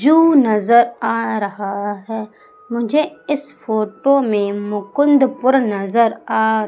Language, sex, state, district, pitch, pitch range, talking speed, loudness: Hindi, female, Madhya Pradesh, Umaria, 230 Hz, 210-275 Hz, 110 wpm, -17 LUFS